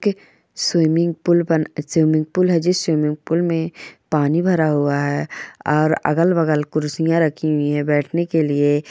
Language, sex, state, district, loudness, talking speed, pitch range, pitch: Hindi, female, Bihar, Purnia, -18 LUFS, 155 wpm, 150-170 Hz, 155 Hz